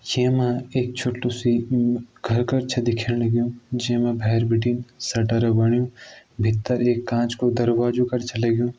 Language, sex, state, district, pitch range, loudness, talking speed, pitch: Garhwali, male, Uttarakhand, Tehri Garhwal, 120-125 Hz, -22 LUFS, 165 wpm, 120 Hz